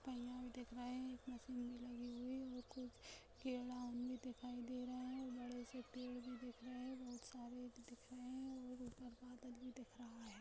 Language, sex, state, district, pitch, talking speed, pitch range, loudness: Hindi, female, Chhattisgarh, Kabirdham, 250 Hz, 215 wpm, 245-255 Hz, -52 LUFS